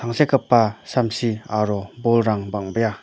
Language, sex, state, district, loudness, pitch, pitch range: Garo, male, Meghalaya, North Garo Hills, -21 LUFS, 115 Hz, 105-120 Hz